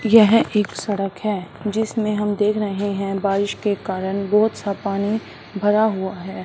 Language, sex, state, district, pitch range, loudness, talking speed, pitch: Hindi, female, Punjab, Fazilka, 195-215 Hz, -21 LUFS, 160 wpm, 205 Hz